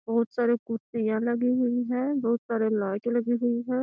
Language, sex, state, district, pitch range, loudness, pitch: Magahi, female, Bihar, Gaya, 230-245 Hz, -27 LUFS, 235 Hz